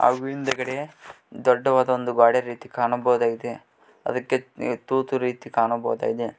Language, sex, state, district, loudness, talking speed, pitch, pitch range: Kannada, male, Karnataka, Koppal, -23 LUFS, 105 wpm, 125 Hz, 120-130 Hz